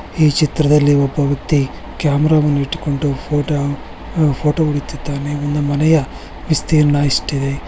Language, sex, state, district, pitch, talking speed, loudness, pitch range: Kannada, male, Karnataka, Bellary, 145 Hz, 85 wpm, -16 LUFS, 140-150 Hz